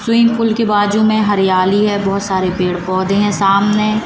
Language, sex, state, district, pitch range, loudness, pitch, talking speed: Hindi, female, Madhya Pradesh, Katni, 190-215 Hz, -14 LUFS, 205 Hz, 190 wpm